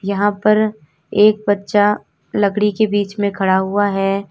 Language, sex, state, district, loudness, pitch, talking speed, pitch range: Hindi, female, Uttar Pradesh, Lalitpur, -17 LUFS, 205 Hz, 155 wpm, 195-210 Hz